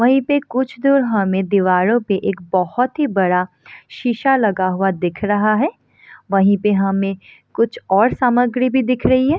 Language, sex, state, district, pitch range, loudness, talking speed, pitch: Hindi, female, Bihar, Samastipur, 195-255 Hz, -17 LUFS, 170 wpm, 215 Hz